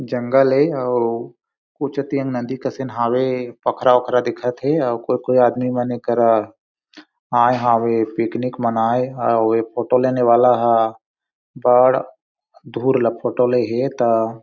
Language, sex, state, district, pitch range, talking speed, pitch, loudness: Chhattisgarhi, male, Chhattisgarh, Sarguja, 115-125 Hz, 125 wpm, 125 Hz, -18 LUFS